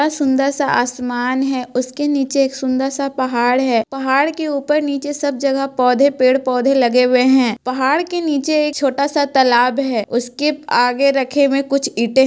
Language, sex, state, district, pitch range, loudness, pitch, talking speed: Magahi, female, Bihar, Gaya, 255-285 Hz, -16 LUFS, 270 Hz, 165 wpm